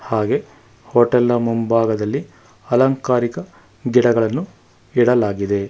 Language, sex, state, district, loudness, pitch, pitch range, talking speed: Kannada, male, Karnataka, Bangalore, -18 LUFS, 120 Hz, 110-125 Hz, 75 wpm